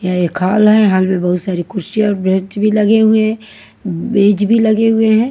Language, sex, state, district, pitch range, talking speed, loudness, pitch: Hindi, female, Haryana, Charkhi Dadri, 185-220 Hz, 225 wpm, -13 LUFS, 205 Hz